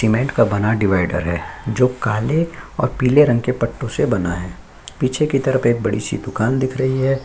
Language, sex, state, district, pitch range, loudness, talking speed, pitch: Hindi, male, Chhattisgarh, Sukma, 105-130 Hz, -19 LUFS, 205 wpm, 120 Hz